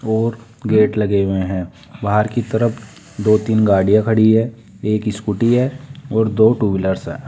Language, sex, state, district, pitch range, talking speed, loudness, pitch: Hindi, male, Rajasthan, Jaipur, 105-115 Hz, 175 wpm, -17 LUFS, 110 Hz